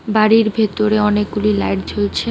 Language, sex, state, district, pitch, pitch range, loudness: Bengali, female, West Bengal, Alipurduar, 210 Hz, 205-215 Hz, -16 LUFS